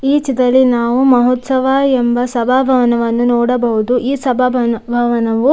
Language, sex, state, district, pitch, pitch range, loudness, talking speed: Kannada, female, Karnataka, Dakshina Kannada, 250 Hz, 240-260 Hz, -13 LUFS, 120 wpm